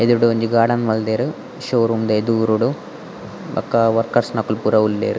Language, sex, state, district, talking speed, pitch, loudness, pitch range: Tulu, male, Karnataka, Dakshina Kannada, 140 wpm, 115 Hz, -18 LUFS, 110-115 Hz